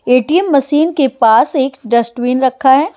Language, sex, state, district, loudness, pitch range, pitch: Hindi, female, Haryana, Jhajjar, -12 LUFS, 245-285 Hz, 265 Hz